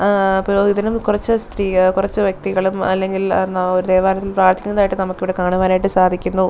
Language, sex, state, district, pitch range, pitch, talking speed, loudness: Malayalam, female, Kerala, Thiruvananthapuram, 185-200 Hz, 190 Hz, 130 wpm, -17 LUFS